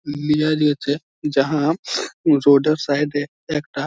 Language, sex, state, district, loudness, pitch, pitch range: Bengali, male, West Bengal, Malda, -19 LUFS, 150 Hz, 145-155 Hz